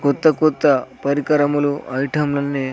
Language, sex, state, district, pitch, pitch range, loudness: Telugu, male, Andhra Pradesh, Sri Satya Sai, 145 Hz, 140-150 Hz, -18 LUFS